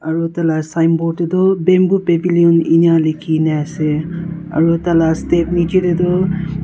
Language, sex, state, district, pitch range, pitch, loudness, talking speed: Nagamese, female, Nagaland, Kohima, 160-175 Hz, 170 Hz, -15 LUFS, 145 wpm